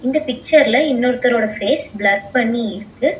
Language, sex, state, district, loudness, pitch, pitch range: Tamil, female, Tamil Nadu, Chennai, -17 LUFS, 250 Hz, 215-285 Hz